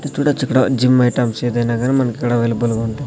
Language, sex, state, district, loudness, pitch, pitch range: Telugu, male, Andhra Pradesh, Sri Satya Sai, -17 LUFS, 125 Hz, 120-130 Hz